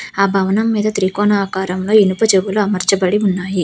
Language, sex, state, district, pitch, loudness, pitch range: Telugu, female, Telangana, Hyderabad, 195 Hz, -15 LUFS, 190-210 Hz